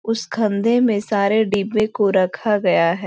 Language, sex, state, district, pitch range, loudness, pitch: Hindi, female, Bihar, East Champaran, 200-220 Hz, -18 LUFS, 210 Hz